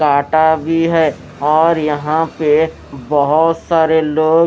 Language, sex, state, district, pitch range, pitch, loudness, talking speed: Hindi, male, Haryana, Rohtak, 150-160 Hz, 160 Hz, -14 LUFS, 120 wpm